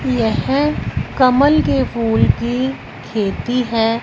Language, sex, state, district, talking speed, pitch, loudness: Hindi, female, Punjab, Fazilka, 105 wpm, 215 Hz, -17 LUFS